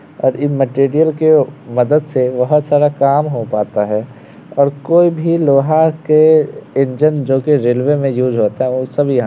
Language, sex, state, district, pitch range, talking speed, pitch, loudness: Hindi, male, Uttar Pradesh, Varanasi, 130-150 Hz, 190 wpm, 140 Hz, -14 LUFS